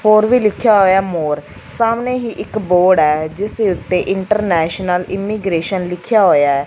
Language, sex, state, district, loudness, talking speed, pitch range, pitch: Punjabi, female, Punjab, Fazilka, -15 LUFS, 160 wpm, 175-215 Hz, 190 Hz